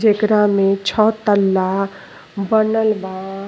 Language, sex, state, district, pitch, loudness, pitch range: Bhojpuri, female, Uttar Pradesh, Gorakhpur, 200 Hz, -17 LUFS, 195-215 Hz